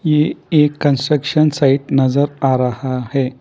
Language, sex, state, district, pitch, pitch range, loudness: Hindi, male, Karnataka, Bangalore, 140 Hz, 130-150 Hz, -16 LUFS